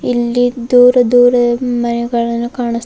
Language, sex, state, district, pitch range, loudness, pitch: Kannada, female, Karnataka, Bidar, 235-245 Hz, -12 LUFS, 245 Hz